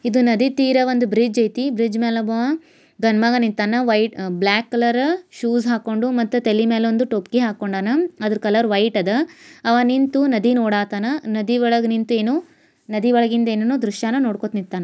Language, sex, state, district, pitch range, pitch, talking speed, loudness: Kannada, female, Karnataka, Bijapur, 220-255 Hz, 235 Hz, 165 wpm, -19 LUFS